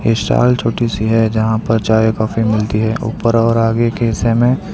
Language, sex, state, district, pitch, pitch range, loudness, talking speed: Hindi, male, Karnataka, Bangalore, 115 Hz, 110-115 Hz, -15 LUFS, 215 wpm